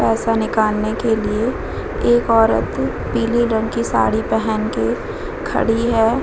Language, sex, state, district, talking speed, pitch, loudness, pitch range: Hindi, female, Bihar, Vaishali, 135 wpm, 225 Hz, -18 LUFS, 220-235 Hz